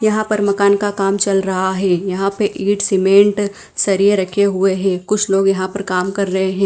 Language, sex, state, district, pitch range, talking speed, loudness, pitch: Hindi, female, Punjab, Fazilka, 190-200 Hz, 215 wpm, -16 LUFS, 195 Hz